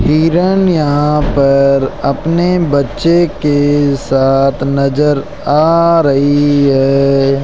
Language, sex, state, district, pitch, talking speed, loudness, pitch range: Hindi, male, Rajasthan, Jaipur, 145 Hz, 90 wpm, -11 LUFS, 140-160 Hz